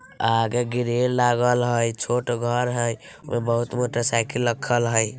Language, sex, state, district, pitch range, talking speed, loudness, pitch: Bajjika, female, Bihar, Vaishali, 115-125 Hz, 150 wpm, -23 LUFS, 120 Hz